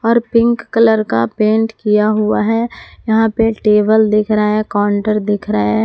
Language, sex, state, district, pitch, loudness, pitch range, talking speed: Hindi, female, Jharkhand, Palamu, 215 Hz, -14 LUFS, 210-225 Hz, 185 wpm